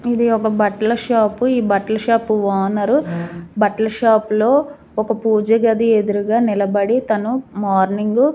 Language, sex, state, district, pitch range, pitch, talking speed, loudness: Telugu, female, Andhra Pradesh, Manyam, 205-235 Hz, 220 Hz, 130 wpm, -17 LUFS